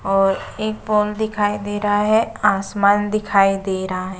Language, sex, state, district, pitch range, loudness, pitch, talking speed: Hindi, female, Uttar Pradesh, Budaun, 195-210 Hz, -19 LUFS, 205 Hz, 170 wpm